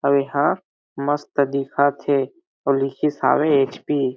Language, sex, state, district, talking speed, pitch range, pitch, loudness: Chhattisgarhi, male, Chhattisgarh, Jashpur, 160 wpm, 135-145 Hz, 140 Hz, -21 LUFS